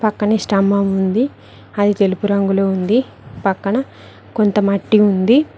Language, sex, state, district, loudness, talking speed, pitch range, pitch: Telugu, female, Telangana, Mahabubabad, -16 LUFS, 120 wpm, 195-215 Hz, 205 Hz